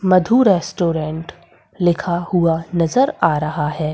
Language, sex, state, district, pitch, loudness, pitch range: Hindi, female, Madhya Pradesh, Umaria, 170 Hz, -17 LUFS, 160-185 Hz